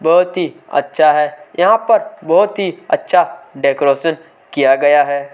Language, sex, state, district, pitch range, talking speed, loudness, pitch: Hindi, male, Chhattisgarh, Kabirdham, 140-180 Hz, 145 wpm, -14 LUFS, 150 Hz